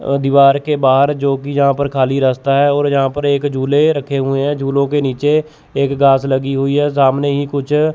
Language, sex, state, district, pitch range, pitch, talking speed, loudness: Hindi, male, Chandigarh, Chandigarh, 135-145 Hz, 140 Hz, 225 wpm, -14 LUFS